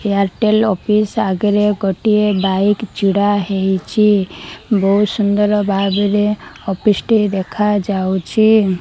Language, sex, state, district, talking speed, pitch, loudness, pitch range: Odia, female, Odisha, Malkangiri, 90 wpm, 205 Hz, -15 LUFS, 195-210 Hz